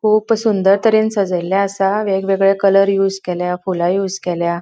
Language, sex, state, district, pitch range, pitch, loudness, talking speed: Konkani, female, Goa, North and South Goa, 185-200 Hz, 195 Hz, -16 LUFS, 155 wpm